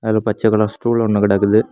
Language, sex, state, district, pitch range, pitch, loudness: Tamil, male, Tamil Nadu, Kanyakumari, 105-110 Hz, 110 Hz, -16 LUFS